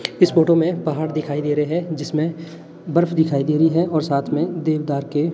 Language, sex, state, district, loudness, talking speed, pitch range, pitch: Hindi, male, Himachal Pradesh, Shimla, -20 LUFS, 215 wpm, 150-165 Hz, 155 Hz